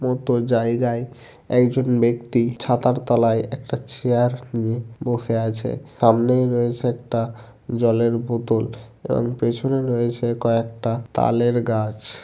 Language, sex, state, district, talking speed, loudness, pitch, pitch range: Bengali, male, West Bengal, Jhargram, 105 wpm, -21 LUFS, 120 Hz, 115-125 Hz